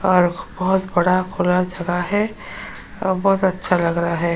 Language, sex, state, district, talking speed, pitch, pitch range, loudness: Hindi, female, Uttar Pradesh, Jyotiba Phule Nagar, 165 wpm, 185 Hz, 175-190 Hz, -19 LUFS